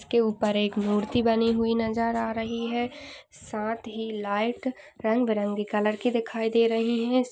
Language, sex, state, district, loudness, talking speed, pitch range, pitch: Hindi, female, Maharashtra, Aurangabad, -26 LUFS, 170 wpm, 215-235 Hz, 225 Hz